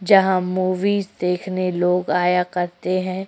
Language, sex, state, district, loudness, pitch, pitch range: Hindi, female, Uttar Pradesh, Jyotiba Phule Nagar, -20 LUFS, 185 Hz, 180-185 Hz